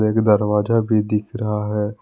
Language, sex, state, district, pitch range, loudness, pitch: Hindi, male, Jharkhand, Palamu, 105-110 Hz, -19 LUFS, 105 Hz